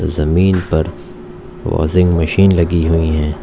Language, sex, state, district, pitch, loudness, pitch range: Hindi, male, Uttar Pradesh, Lalitpur, 85 Hz, -14 LUFS, 80-90 Hz